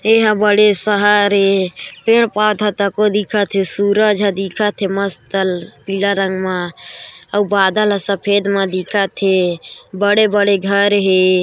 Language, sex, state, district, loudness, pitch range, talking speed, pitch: Chhattisgarhi, female, Chhattisgarh, Korba, -15 LUFS, 195-210 Hz, 140 wpm, 200 Hz